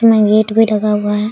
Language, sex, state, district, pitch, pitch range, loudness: Hindi, female, Jharkhand, Sahebganj, 215 Hz, 210-220 Hz, -13 LUFS